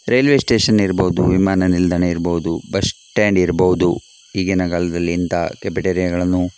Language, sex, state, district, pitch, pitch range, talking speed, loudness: Kannada, male, Karnataka, Dakshina Kannada, 90 Hz, 90-95 Hz, 125 wpm, -17 LUFS